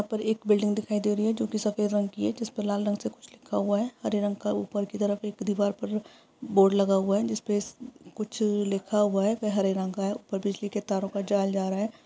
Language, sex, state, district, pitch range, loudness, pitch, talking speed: Maithili, female, Bihar, Araria, 200-215 Hz, -28 LUFS, 205 Hz, 270 wpm